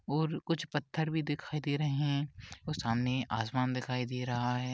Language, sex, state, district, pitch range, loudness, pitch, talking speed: Hindi, male, Maharashtra, Dhule, 125-150 Hz, -34 LUFS, 140 Hz, 190 wpm